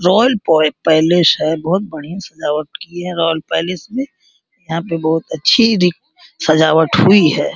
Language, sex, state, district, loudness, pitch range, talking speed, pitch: Hindi, male, Uttar Pradesh, Gorakhpur, -14 LUFS, 160-195 Hz, 150 wpm, 170 Hz